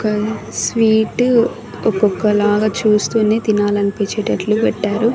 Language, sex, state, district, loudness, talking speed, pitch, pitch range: Telugu, female, Andhra Pradesh, Annamaya, -16 LUFS, 70 wpm, 215 Hz, 210-220 Hz